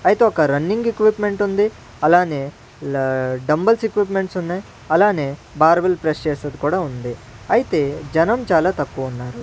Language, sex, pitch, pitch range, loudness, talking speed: Telugu, male, 155 Hz, 135-195 Hz, -19 LUFS, 135 wpm